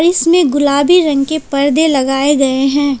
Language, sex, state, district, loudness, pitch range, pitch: Hindi, female, Jharkhand, Palamu, -12 LUFS, 275-315 Hz, 285 Hz